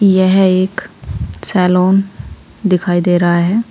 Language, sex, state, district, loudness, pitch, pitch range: Hindi, female, Uttar Pradesh, Saharanpur, -13 LUFS, 185 Hz, 180-195 Hz